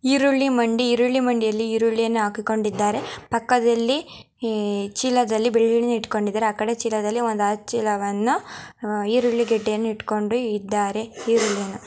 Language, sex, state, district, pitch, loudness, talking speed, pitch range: Kannada, female, Karnataka, Mysore, 225 Hz, -22 LUFS, 115 wpm, 210-240 Hz